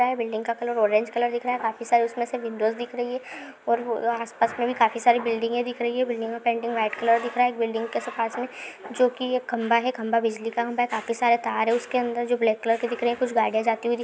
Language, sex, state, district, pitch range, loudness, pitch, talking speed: Hindi, female, Uttarakhand, Tehri Garhwal, 230-245 Hz, -25 LUFS, 235 Hz, 285 wpm